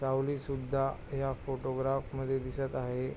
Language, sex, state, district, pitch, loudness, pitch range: Marathi, male, Maharashtra, Pune, 135 Hz, -34 LUFS, 130-135 Hz